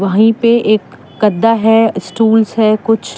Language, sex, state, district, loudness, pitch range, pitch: Hindi, female, Jharkhand, Deoghar, -12 LUFS, 205-225 Hz, 220 Hz